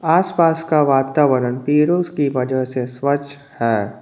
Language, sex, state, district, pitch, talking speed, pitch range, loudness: Hindi, male, Jharkhand, Ranchi, 140 Hz, 135 wpm, 130-155 Hz, -18 LUFS